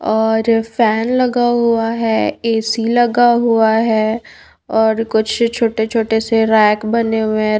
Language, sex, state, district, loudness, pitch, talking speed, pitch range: Hindi, female, Bihar, Patna, -15 LUFS, 225 Hz, 140 wpm, 220-235 Hz